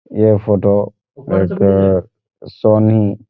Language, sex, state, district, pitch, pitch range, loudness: Hindi, male, Chhattisgarh, Bastar, 105 Hz, 100-110 Hz, -14 LUFS